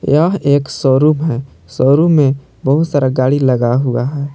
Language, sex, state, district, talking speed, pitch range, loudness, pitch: Hindi, male, Jharkhand, Palamu, 165 wpm, 130-150 Hz, -13 LUFS, 140 Hz